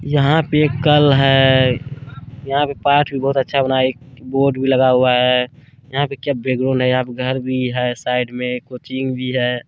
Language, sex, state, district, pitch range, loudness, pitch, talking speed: Hindi, male, Bihar, Saharsa, 125-140 Hz, -17 LUFS, 130 Hz, 205 wpm